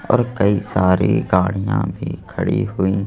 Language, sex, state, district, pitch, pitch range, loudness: Hindi, male, Madhya Pradesh, Bhopal, 95 Hz, 95-100 Hz, -19 LUFS